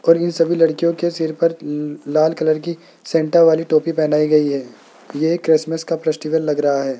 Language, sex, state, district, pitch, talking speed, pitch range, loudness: Hindi, male, Rajasthan, Jaipur, 160 Hz, 205 wpm, 150-165 Hz, -18 LUFS